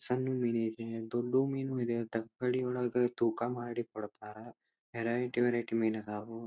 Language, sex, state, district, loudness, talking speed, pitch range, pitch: Kannada, male, Karnataka, Dharwad, -34 LUFS, 140 wpm, 115-125 Hz, 120 Hz